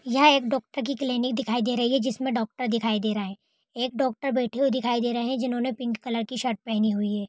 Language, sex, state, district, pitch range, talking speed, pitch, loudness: Hindi, female, Jharkhand, Jamtara, 230-260 Hz, 265 wpm, 245 Hz, -26 LUFS